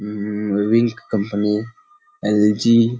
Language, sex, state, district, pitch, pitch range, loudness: Hindi, male, Bihar, Kishanganj, 105 Hz, 105-115 Hz, -19 LUFS